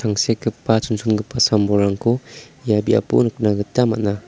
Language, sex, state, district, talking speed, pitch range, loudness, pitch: Garo, male, Meghalaya, South Garo Hills, 100 wpm, 105-115 Hz, -19 LUFS, 110 Hz